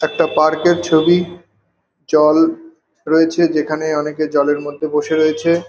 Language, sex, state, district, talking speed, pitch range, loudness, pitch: Bengali, male, West Bengal, North 24 Parganas, 125 wpm, 150-165 Hz, -15 LUFS, 155 Hz